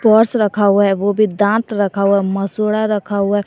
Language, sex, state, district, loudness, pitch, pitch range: Hindi, female, Jharkhand, Garhwa, -15 LUFS, 205 Hz, 200-215 Hz